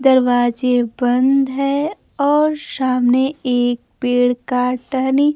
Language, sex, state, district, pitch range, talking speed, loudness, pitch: Hindi, female, Bihar, Kaimur, 245-275 Hz, 100 wpm, -17 LUFS, 255 Hz